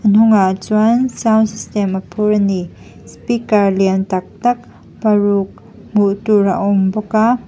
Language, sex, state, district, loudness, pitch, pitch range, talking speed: Mizo, female, Mizoram, Aizawl, -15 LUFS, 210 Hz, 195-220 Hz, 150 wpm